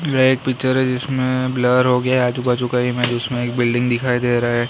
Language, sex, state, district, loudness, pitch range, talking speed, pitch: Hindi, male, Maharashtra, Mumbai Suburban, -18 LUFS, 120-130 Hz, 255 wpm, 125 Hz